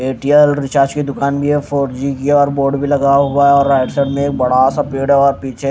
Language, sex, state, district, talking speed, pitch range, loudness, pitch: Hindi, male, Punjab, Kapurthala, 265 wpm, 135-140 Hz, -14 LUFS, 140 Hz